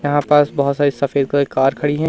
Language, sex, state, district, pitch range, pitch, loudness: Hindi, male, Madhya Pradesh, Umaria, 140-145 Hz, 145 Hz, -16 LUFS